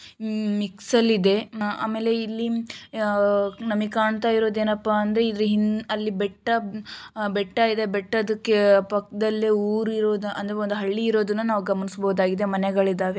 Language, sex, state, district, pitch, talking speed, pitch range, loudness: Kannada, female, Karnataka, Shimoga, 215 Hz, 125 wpm, 205-220 Hz, -23 LUFS